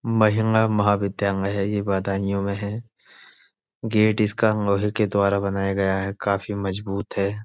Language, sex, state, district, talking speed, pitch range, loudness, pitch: Hindi, male, Uttar Pradesh, Budaun, 145 wpm, 100-105 Hz, -22 LUFS, 100 Hz